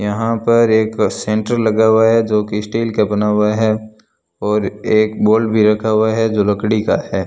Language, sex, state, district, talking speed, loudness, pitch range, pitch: Hindi, male, Rajasthan, Bikaner, 205 wpm, -15 LUFS, 105-110 Hz, 110 Hz